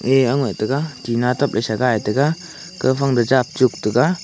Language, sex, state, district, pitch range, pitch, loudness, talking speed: Wancho, male, Arunachal Pradesh, Longding, 120-140 Hz, 130 Hz, -19 LUFS, 225 wpm